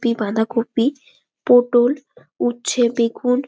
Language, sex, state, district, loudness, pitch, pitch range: Bengali, female, West Bengal, Malda, -18 LUFS, 240 Hz, 225-250 Hz